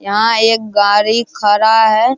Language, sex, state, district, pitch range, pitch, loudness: Hindi, male, Bihar, Araria, 210-225 Hz, 220 Hz, -12 LUFS